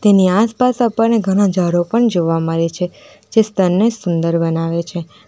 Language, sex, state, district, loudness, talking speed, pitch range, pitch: Gujarati, female, Gujarat, Valsad, -16 LUFS, 160 wpm, 170-220 Hz, 185 Hz